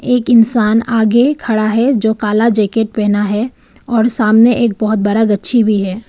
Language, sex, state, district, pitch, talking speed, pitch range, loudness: Hindi, female, Arunachal Pradesh, Papum Pare, 225 Hz, 175 wpm, 215-235 Hz, -12 LUFS